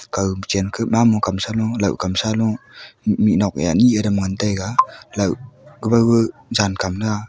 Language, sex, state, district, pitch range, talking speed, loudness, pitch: Wancho, female, Arunachal Pradesh, Longding, 95-115 Hz, 150 wpm, -19 LUFS, 105 Hz